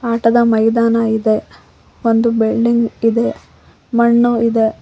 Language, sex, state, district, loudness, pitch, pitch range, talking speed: Kannada, female, Karnataka, Koppal, -14 LUFS, 230 Hz, 225-235 Hz, 100 wpm